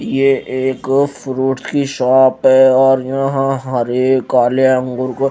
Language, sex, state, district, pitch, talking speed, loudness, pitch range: Hindi, female, Punjab, Fazilka, 130 Hz, 135 wpm, -14 LUFS, 130-135 Hz